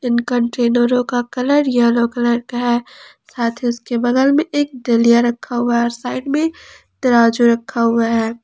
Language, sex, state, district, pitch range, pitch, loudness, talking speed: Hindi, female, Jharkhand, Palamu, 235-250 Hz, 240 Hz, -16 LUFS, 180 wpm